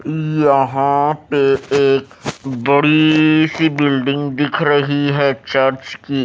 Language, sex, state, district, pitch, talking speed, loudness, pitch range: Hindi, male, Odisha, Malkangiri, 140 Hz, 105 wpm, -15 LUFS, 135-150 Hz